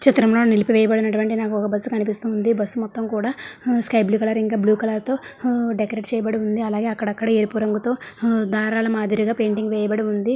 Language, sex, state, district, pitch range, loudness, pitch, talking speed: Telugu, female, Andhra Pradesh, Srikakulam, 215-230 Hz, -20 LUFS, 220 Hz, 185 wpm